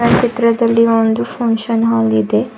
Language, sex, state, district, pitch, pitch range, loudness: Kannada, female, Karnataka, Bidar, 230 Hz, 225-235 Hz, -14 LUFS